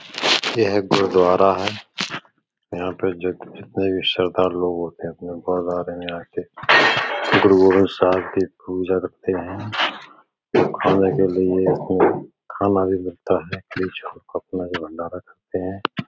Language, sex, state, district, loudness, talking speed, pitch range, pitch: Hindi, male, Uttar Pradesh, Etah, -20 LUFS, 140 wpm, 90-95 Hz, 90 Hz